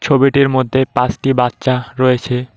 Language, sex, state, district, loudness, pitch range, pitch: Bengali, male, West Bengal, Cooch Behar, -15 LUFS, 125-135 Hz, 130 Hz